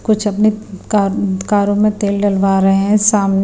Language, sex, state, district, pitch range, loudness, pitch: Hindi, female, Himachal Pradesh, Shimla, 195-210 Hz, -14 LUFS, 205 Hz